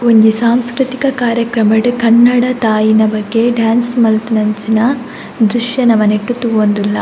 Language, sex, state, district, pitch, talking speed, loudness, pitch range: Tulu, female, Karnataka, Dakshina Kannada, 230 Hz, 100 wpm, -12 LUFS, 220-240 Hz